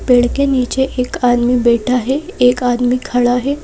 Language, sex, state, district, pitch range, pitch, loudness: Hindi, female, Madhya Pradesh, Bhopal, 245-265 Hz, 250 Hz, -14 LUFS